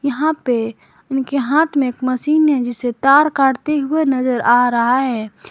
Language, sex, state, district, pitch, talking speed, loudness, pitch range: Hindi, female, Jharkhand, Garhwa, 265 Hz, 175 wpm, -16 LUFS, 245-290 Hz